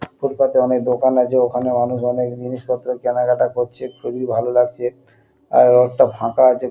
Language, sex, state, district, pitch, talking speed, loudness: Bengali, male, West Bengal, Kolkata, 125 Hz, 170 wpm, -18 LUFS